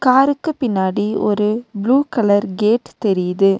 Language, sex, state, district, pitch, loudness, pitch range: Tamil, female, Tamil Nadu, Nilgiris, 210 Hz, -17 LUFS, 200-250 Hz